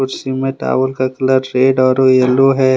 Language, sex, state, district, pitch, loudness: Hindi, male, Jharkhand, Deoghar, 130 Hz, -14 LUFS